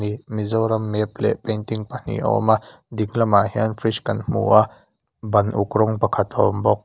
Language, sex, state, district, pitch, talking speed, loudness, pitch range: Mizo, male, Mizoram, Aizawl, 110 Hz, 185 wpm, -21 LUFS, 105-115 Hz